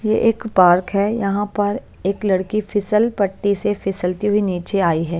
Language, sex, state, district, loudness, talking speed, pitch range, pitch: Hindi, female, Chhattisgarh, Raipur, -19 LUFS, 185 wpm, 190-210 Hz, 205 Hz